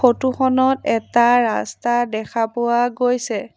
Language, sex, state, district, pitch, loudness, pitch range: Assamese, female, Assam, Sonitpur, 240 Hz, -18 LUFS, 230-250 Hz